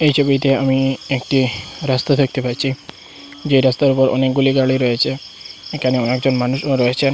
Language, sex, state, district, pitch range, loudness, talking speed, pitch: Bengali, male, Assam, Hailakandi, 125-135 Hz, -17 LUFS, 145 wpm, 130 Hz